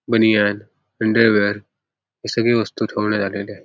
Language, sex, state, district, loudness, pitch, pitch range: Marathi, male, Maharashtra, Sindhudurg, -18 LUFS, 110 Hz, 105-115 Hz